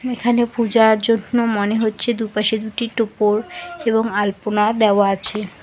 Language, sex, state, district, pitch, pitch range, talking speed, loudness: Bengali, female, West Bengal, Alipurduar, 220 Hz, 210-235 Hz, 130 wpm, -18 LUFS